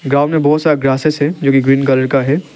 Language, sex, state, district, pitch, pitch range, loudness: Hindi, male, Arunachal Pradesh, Lower Dibang Valley, 140 Hz, 135-150 Hz, -13 LUFS